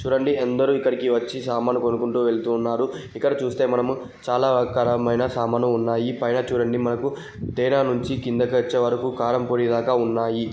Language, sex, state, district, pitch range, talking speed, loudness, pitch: Telugu, male, Andhra Pradesh, Guntur, 120-125 Hz, 135 wpm, -22 LUFS, 125 Hz